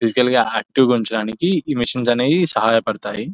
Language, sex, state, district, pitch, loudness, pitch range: Telugu, male, Telangana, Nalgonda, 120 Hz, -17 LUFS, 115-130 Hz